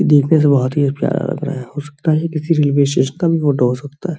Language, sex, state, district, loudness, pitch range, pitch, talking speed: Hindi, male, Bihar, Araria, -16 LUFS, 140-155 Hz, 145 Hz, 345 wpm